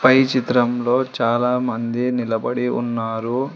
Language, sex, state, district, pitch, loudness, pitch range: Telugu, female, Telangana, Hyderabad, 125 Hz, -20 LUFS, 120-125 Hz